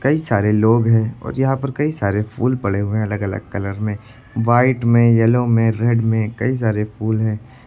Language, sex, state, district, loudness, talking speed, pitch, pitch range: Hindi, male, Uttar Pradesh, Lucknow, -18 LUFS, 210 wpm, 115 Hz, 105-120 Hz